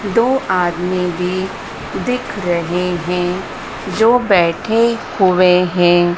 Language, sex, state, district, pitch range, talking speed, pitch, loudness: Hindi, female, Madhya Pradesh, Dhar, 180-210 Hz, 95 wpm, 180 Hz, -16 LUFS